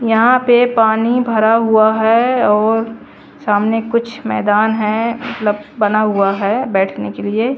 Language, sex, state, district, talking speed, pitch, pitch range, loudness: Hindi, female, Haryana, Charkhi Dadri, 145 wpm, 220 Hz, 210-235 Hz, -14 LUFS